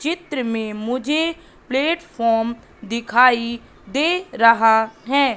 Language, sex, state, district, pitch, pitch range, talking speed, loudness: Hindi, female, Madhya Pradesh, Katni, 245 Hz, 230-295 Hz, 90 wpm, -19 LUFS